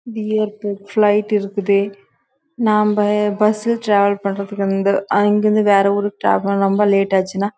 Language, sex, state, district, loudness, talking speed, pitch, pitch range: Tamil, female, Karnataka, Chamarajanagar, -17 LUFS, 135 wpm, 205 Hz, 200-210 Hz